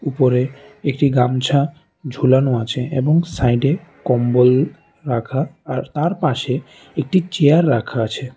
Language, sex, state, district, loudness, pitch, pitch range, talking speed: Bengali, male, Tripura, West Tripura, -18 LUFS, 135 Hz, 125-150 Hz, 105 wpm